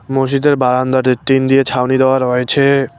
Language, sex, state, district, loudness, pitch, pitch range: Bengali, male, West Bengal, Cooch Behar, -13 LUFS, 130 Hz, 130-135 Hz